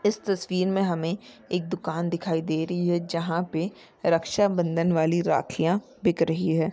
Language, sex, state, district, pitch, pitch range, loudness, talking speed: Hindi, female, Maharashtra, Sindhudurg, 170 Hz, 165-185 Hz, -26 LUFS, 160 wpm